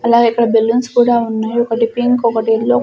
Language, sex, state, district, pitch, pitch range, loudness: Telugu, female, Andhra Pradesh, Sri Satya Sai, 230 Hz, 225-235 Hz, -14 LUFS